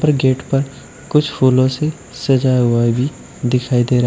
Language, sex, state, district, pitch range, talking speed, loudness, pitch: Hindi, male, Uttar Pradesh, Shamli, 125-135 Hz, 190 wpm, -16 LUFS, 130 Hz